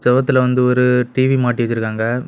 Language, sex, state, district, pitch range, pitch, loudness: Tamil, male, Tamil Nadu, Kanyakumari, 120-125 Hz, 125 Hz, -16 LUFS